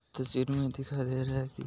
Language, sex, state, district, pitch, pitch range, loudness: Hindi, male, Rajasthan, Nagaur, 130 Hz, 130-135 Hz, -33 LUFS